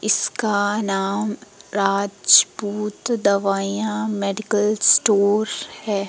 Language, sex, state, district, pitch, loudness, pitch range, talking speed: Hindi, female, Madhya Pradesh, Umaria, 205 Hz, -19 LUFS, 200-215 Hz, 70 wpm